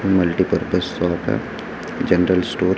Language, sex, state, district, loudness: Hindi, male, Chhattisgarh, Raipur, -20 LUFS